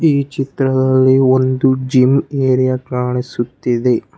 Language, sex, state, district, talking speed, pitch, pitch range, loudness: Kannada, male, Karnataka, Bangalore, 85 wpm, 130 Hz, 125-135 Hz, -15 LUFS